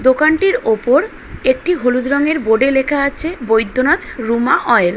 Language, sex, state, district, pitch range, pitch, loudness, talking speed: Bengali, female, West Bengal, Dakshin Dinajpur, 235-315 Hz, 265 Hz, -15 LUFS, 155 wpm